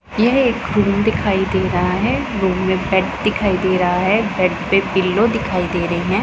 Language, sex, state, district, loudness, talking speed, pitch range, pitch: Hindi, female, Punjab, Pathankot, -17 LUFS, 200 wpm, 185-210 Hz, 190 Hz